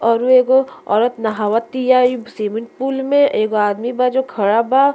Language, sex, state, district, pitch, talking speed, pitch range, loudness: Bhojpuri, female, Uttar Pradesh, Deoria, 245 Hz, 195 wpm, 220-260 Hz, -16 LUFS